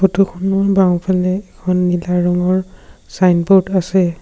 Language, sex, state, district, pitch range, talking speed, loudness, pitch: Assamese, male, Assam, Sonitpur, 180-190 Hz, 115 wpm, -15 LUFS, 185 Hz